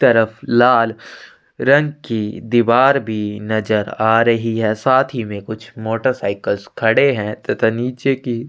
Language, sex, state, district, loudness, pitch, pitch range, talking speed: Hindi, male, Chhattisgarh, Sukma, -17 LUFS, 115 Hz, 110-130 Hz, 140 wpm